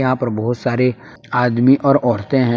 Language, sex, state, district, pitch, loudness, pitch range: Hindi, male, Jharkhand, Palamu, 125 Hz, -16 LUFS, 120-135 Hz